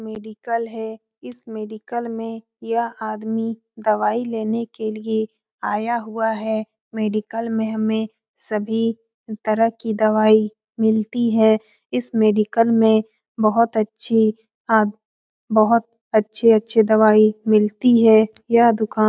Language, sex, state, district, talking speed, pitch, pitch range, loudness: Hindi, female, Bihar, Lakhisarai, 115 wpm, 220 Hz, 215-230 Hz, -19 LUFS